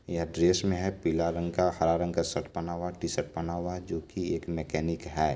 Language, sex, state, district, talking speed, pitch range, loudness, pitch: Maithili, male, Bihar, Supaul, 270 wpm, 85-90 Hz, -30 LUFS, 85 Hz